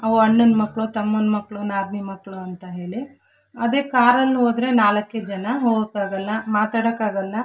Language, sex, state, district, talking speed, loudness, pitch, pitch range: Kannada, female, Karnataka, Shimoga, 135 wpm, -20 LUFS, 215 Hz, 200-235 Hz